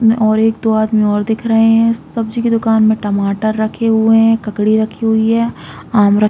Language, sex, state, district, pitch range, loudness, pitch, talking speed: Hindi, female, Chhattisgarh, Raigarh, 215-225 Hz, -13 LUFS, 220 Hz, 220 wpm